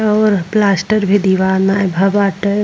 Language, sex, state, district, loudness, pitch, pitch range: Bhojpuri, female, Uttar Pradesh, Ghazipur, -14 LUFS, 200 Hz, 190-210 Hz